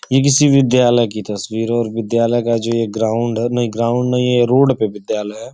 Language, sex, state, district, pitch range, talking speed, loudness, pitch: Hindi, male, Uttar Pradesh, Gorakhpur, 110-125 Hz, 240 wpm, -16 LUFS, 115 Hz